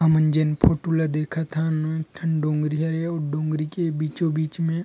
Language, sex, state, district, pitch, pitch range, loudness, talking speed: Chhattisgarhi, male, Chhattisgarh, Rajnandgaon, 155 Hz, 155-160 Hz, -24 LUFS, 195 wpm